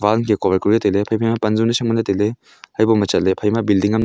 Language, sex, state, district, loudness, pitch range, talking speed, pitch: Wancho, male, Arunachal Pradesh, Longding, -17 LUFS, 100-115 Hz, 265 wpm, 110 Hz